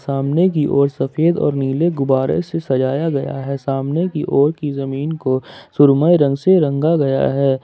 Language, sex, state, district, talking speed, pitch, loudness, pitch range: Hindi, male, Jharkhand, Ranchi, 180 wpm, 140 Hz, -17 LUFS, 135-160 Hz